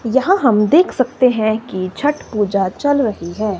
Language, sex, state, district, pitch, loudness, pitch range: Hindi, female, Himachal Pradesh, Shimla, 225 Hz, -16 LUFS, 205-270 Hz